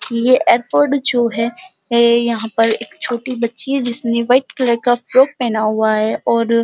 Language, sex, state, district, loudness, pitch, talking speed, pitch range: Hindi, female, Uttar Pradesh, Muzaffarnagar, -15 LUFS, 235 Hz, 190 wpm, 230-255 Hz